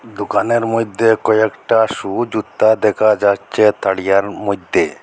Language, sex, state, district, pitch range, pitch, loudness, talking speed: Bengali, male, Assam, Hailakandi, 100-110 Hz, 110 Hz, -15 LUFS, 105 wpm